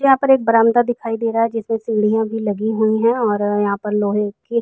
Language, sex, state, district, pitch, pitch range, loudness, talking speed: Hindi, female, Uttar Pradesh, Jalaun, 225 Hz, 210-230 Hz, -17 LUFS, 260 wpm